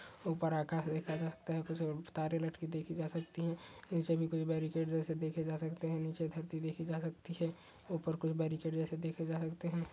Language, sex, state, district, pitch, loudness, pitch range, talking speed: Hindi, male, Uttar Pradesh, Etah, 160 Hz, -39 LUFS, 160-165 Hz, 210 wpm